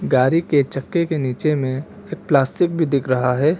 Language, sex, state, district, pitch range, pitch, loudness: Hindi, male, Arunachal Pradesh, Papum Pare, 130-165 Hz, 145 Hz, -19 LUFS